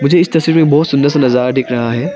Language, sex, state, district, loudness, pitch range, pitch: Hindi, male, Arunachal Pradesh, Papum Pare, -12 LUFS, 125-160 Hz, 140 Hz